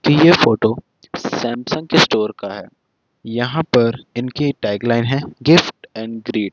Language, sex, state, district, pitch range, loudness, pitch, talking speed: Hindi, male, Chandigarh, Chandigarh, 115-150 Hz, -17 LUFS, 120 Hz, 145 wpm